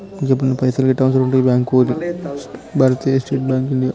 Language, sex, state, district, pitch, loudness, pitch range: Telugu, male, Telangana, Karimnagar, 130 Hz, -17 LUFS, 130-135 Hz